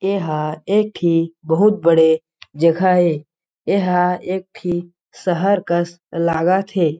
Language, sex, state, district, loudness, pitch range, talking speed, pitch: Chhattisgarhi, male, Chhattisgarh, Jashpur, -18 LUFS, 165-185 Hz, 120 wpm, 175 Hz